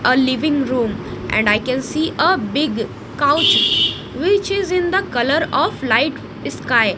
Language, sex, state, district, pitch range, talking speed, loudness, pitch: English, female, Odisha, Nuapada, 255-360 Hz, 155 wpm, -17 LUFS, 290 Hz